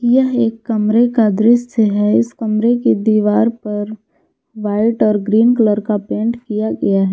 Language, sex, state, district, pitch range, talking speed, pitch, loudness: Hindi, female, Jharkhand, Garhwa, 210-235 Hz, 170 wpm, 220 Hz, -15 LUFS